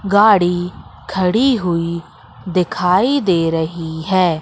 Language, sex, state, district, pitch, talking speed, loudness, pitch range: Hindi, female, Madhya Pradesh, Katni, 180 Hz, 95 wpm, -16 LUFS, 170-195 Hz